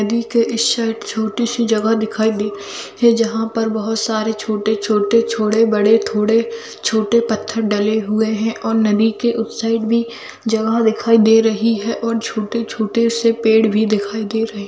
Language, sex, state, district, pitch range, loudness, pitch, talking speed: Hindi, female, Bihar, Bhagalpur, 215-230 Hz, -17 LUFS, 225 Hz, 180 wpm